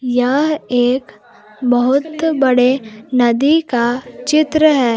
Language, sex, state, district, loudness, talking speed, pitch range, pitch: Hindi, female, Jharkhand, Palamu, -15 LUFS, 95 wpm, 245-295 Hz, 255 Hz